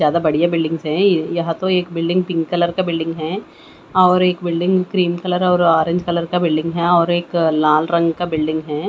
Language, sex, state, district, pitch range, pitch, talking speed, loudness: Hindi, female, Bihar, West Champaran, 165-180 Hz, 170 Hz, 210 wpm, -17 LUFS